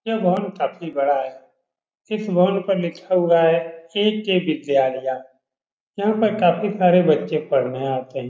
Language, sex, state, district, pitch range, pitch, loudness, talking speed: Hindi, male, Uttar Pradesh, Etah, 135-195 Hz, 170 Hz, -20 LUFS, 150 wpm